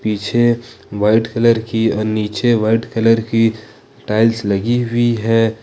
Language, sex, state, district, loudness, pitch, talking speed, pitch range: Hindi, male, Jharkhand, Ranchi, -16 LUFS, 115 Hz, 140 wpm, 110-120 Hz